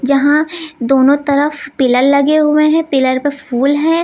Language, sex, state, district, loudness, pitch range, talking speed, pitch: Hindi, female, Uttar Pradesh, Lucknow, -13 LUFS, 270-305 Hz, 165 wpm, 285 Hz